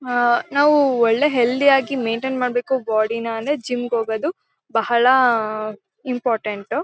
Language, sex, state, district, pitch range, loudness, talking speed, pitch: Kannada, female, Karnataka, Mysore, 225-265 Hz, -19 LUFS, 140 wpm, 245 Hz